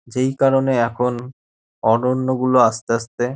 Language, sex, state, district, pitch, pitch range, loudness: Bengali, male, West Bengal, Dakshin Dinajpur, 125 Hz, 115-130 Hz, -18 LUFS